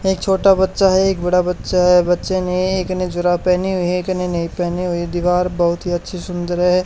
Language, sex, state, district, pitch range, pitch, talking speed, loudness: Hindi, male, Haryana, Charkhi Dadri, 175-185 Hz, 180 Hz, 235 wpm, -17 LUFS